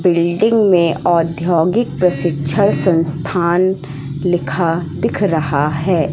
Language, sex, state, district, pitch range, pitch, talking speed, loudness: Hindi, female, Madhya Pradesh, Katni, 155-180 Hz, 170 Hz, 90 wpm, -16 LUFS